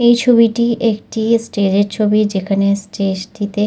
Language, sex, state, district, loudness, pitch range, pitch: Bengali, female, West Bengal, Dakshin Dinajpur, -15 LUFS, 200-230 Hz, 210 Hz